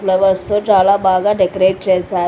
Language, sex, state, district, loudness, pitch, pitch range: Telugu, female, Telangana, Hyderabad, -14 LUFS, 190 Hz, 185-200 Hz